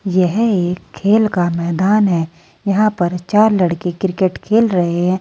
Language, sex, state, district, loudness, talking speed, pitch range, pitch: Hindi, female, Uttar Pradesh, Saharanpur, -16 LUFS, 160 wpm, 175-205 Hz, 185 Hz